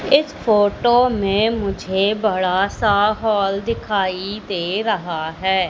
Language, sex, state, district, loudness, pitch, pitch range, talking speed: Hindi, female, Madhya Pradesh, Katni, -19 LUFS, 205 Hz, 190-220 Hz, 115 wpm